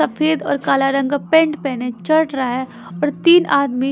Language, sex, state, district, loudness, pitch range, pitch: Hindi, female, Haryana, Charkhi Dadri, -17 LUFS, 260-310 Hz, 280 Hz